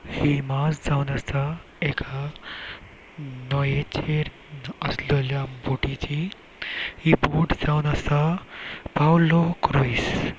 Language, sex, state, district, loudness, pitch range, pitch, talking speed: Konkani, male, Goa, North and South Goa, -24 LUFS, 135-150 Hz, 145 Hz, 85 wpm